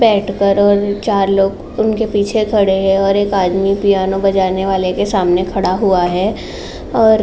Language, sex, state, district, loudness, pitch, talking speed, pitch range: Hindi, female, Uttar Pradesh, Jalaun, -14 LUFS, 195 Hz, 175 wpm, 190-205 Hz